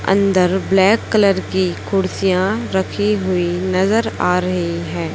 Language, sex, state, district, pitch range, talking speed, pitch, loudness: Hindi, female, Chhattisgarh, Raipur, 185-200 Hz, 130 wpm, 190 Hz, -17 LUFS